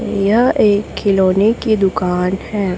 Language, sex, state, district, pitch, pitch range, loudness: Hindi, female, Chhattisgarh, Raipur, 200 Hz, 185-215 Hz, -15 LUFS